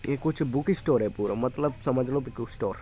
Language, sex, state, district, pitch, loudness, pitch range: Hindi, male, Uttar Pradesh, Muzaffarnagar, 140 Hz, -27 LUFS, 120-150 Hz